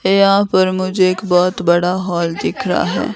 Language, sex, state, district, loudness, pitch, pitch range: Hindi, female, Himachal Pradesh, Shimla, -15 LUFS, 185 Hz, 180-190 Hz